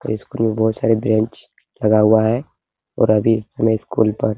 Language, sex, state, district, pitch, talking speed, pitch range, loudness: Hindi, male, Uttar Pradesh, Hamirpur, 110 Hz, 190 wpm, 110-115 Hz, -17 LUFS